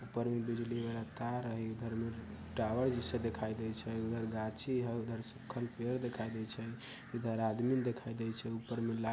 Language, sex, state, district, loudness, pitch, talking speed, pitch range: Bajjika, male, Bihar, Vaishali, -39 LUFS, 115 Hz, 205 wpm, 115-120 Hz